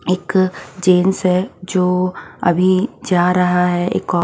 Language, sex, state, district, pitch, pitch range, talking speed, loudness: Hindi, female, Haryana, Charkhi Dadri, 180 Hz, 180-185 Hz, 140 wpm, -16 LUFS